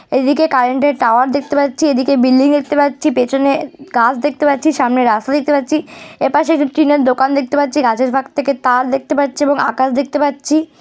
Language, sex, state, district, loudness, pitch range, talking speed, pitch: Bengali, female, West Bengal, Dakshin Dinajpur, -14 LUFS, 260-290 Hz, 195 wpm, 280 Hz